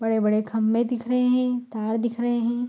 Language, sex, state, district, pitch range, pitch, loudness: Hindi, female, Bihar, Saharsa, 225-245 Hz, 235 Hz, -24 LUFS